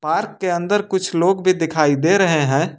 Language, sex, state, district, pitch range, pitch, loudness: Hindi, male, Jharkhand, Ranchi, 160-190 Hz, 175 Hz, -18 LUFS